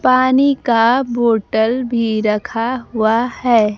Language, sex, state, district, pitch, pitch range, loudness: Hindi, female, Bihar, Kaimur, 235 Hz, 220-255 Hz, -16 LUFS